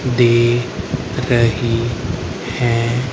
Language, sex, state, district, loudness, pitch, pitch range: Hindi, male, Haryana, Rohtak, -17 LUFS, 120 Hz, 115-125 Hz